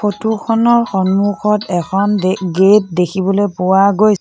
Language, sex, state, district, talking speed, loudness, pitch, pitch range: Assamese, female, Assam, Sonitpur, 140 wpm, -14 LUFS, 200 Hz, 190-210 Hz